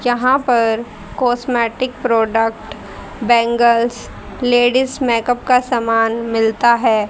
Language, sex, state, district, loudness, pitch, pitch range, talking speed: Hindi, female, Haryana, Rohtak, -16 LUFS, 235 Hz, 225-245 Hz, 95 wpm